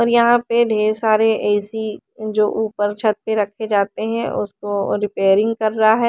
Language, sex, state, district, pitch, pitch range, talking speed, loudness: Hindi, female, Haryana, Charkhi Dadri, 215 Hz, 210-225 Hz, 175 wpm, -18 LUFS